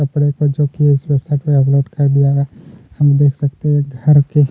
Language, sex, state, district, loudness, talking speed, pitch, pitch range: Hindi, male, Chhattisgarh, Kabirdham, -14 LUFS, 255 wpm, 145 Hz, 140-145 Hz